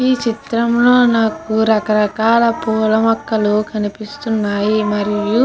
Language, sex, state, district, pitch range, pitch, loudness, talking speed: Telugu, female, Andhra Pradesh, Guntur, 210-230 Hz, 220 Hz, -15 LUFS, 110 wpm